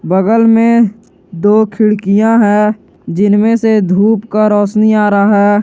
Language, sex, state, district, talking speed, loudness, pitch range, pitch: Hindi, male, Jharkhand, Garhwa, 140 wpm, -10 LUFS, 205-220 Hz, 210 Hz